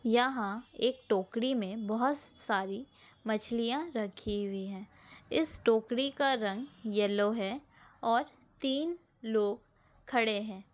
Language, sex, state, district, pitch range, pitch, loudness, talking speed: Hindi, female, Bihar, Sitamarhi, 205-255 Hz, 225 Hz, -33 LUFS, 115 wpm